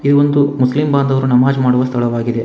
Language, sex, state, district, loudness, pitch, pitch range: Kannada, male, Karnataka, Bangalore, -14 LUFS, 130 Hz, 125-140 Hz